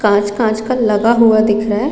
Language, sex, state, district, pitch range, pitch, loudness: Hindi, female, Chhattisgarh, Raigarh, 210-230 Hz, 215 Hz, -13 LUFS